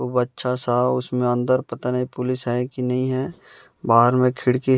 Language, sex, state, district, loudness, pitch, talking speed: Hindi, male, Bihar, West Champaran, -21 LUFS, 125 Hz, 200 wpm